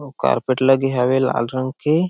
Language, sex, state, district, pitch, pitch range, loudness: Chhattisgarhi, male, Chhattisgarh, Sarguja, 130 Hz, 130-145 Hz, -19 LUFS